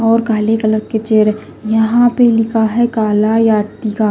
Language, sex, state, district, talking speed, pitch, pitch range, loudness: Hindi, female, Bihar, Patna, 175 wpm, 220 Hz, 215-225 Hz, -13 LUFS